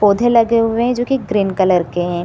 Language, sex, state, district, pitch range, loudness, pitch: Hindi, female, Bihar, Supaul, 185-235 Hz, -15 LUFS, 210 Hz